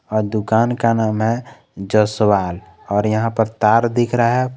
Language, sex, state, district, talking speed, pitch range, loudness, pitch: Hindi, male, Jharkhand, Garhwa, 170 wpm, 105-120 Hz, -17 LUFS, 110 Hz